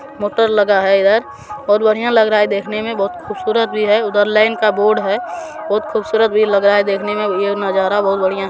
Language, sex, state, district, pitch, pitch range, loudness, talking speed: Hindi, male, Bihar, Supaul, 210 Hz, 200-220 Hz, -15 LUFS, 225 wpm